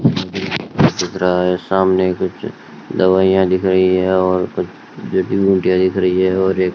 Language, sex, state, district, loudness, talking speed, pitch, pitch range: Hindi, male, Rajasthan, Bikaner, -16 LUFS, 170 wpm, 95 Hz, 90-95 Hz